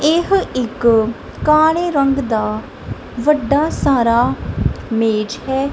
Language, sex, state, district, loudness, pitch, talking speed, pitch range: Punjabi, female, Punjab, Kapurthala, -16 LUFS, 265 Hz, 95 wpm, 230-300 Hz